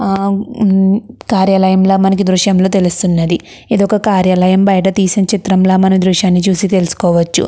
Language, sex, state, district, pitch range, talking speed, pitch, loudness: Telugu, female, Andhra Pradesh, Krishna, 185-195 Hz, 105 wpm, 190 Hz, -12 LUFS